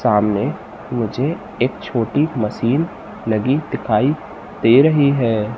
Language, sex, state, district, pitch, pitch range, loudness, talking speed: Hindi, male, Madhya Pradesh, Katni, 120 Hz, 110-140 Hz, -18 LUFS, 110 wpm